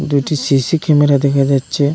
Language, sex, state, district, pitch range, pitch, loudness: Bengali, male, Assam, Hailakandi, 140-150 Hz, 140 Hz, -14 LUFS